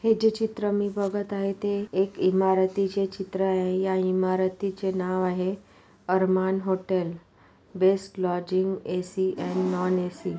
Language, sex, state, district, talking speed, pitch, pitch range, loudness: Marathi, female, Maharashtra, Pune, 140 wpm, 190 Hz, 185-195 Hz, -26 LUFS